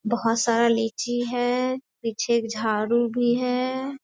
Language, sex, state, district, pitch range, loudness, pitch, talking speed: Hindi, female, Bihar, Sitamarhi, 230-250 Hz, -24 LUFS, 235 Hz, 135 wpm